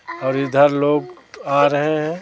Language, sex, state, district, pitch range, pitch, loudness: Hindi, male, Chhattisgarh, Raipur, 140-150 Hz, 145 Hz, -18 LUFS